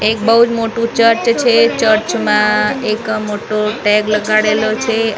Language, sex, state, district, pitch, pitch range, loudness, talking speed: Gujarati, female, Maharashtra, Mumbai Suburban, 220 Hz, 215-230 Hz, -13 LUFS, 185 wpm